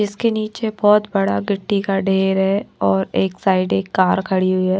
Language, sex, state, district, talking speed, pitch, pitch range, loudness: Hindi, female, Maharashtra, Washim, 200 wpm, 195 Hz, 185-205 Hz, -18 LUFS